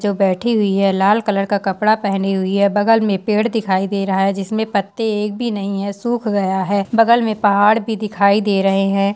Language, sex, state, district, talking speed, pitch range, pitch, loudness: Hindi, female, Uttarakhand, Uttarkashi, 230 wpm, 195-215 Hz, 200 Hz, -17 LUFS